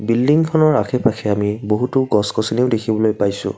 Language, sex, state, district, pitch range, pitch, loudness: Assamese, male, Assam, Kamrup Metropolitan, 105-125 Hz, 110 Hz, -17 LUFS